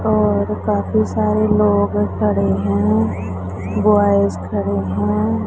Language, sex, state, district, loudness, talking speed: Hindi, female, Punjab, Pathankot, -17 LUFS, 100 wpm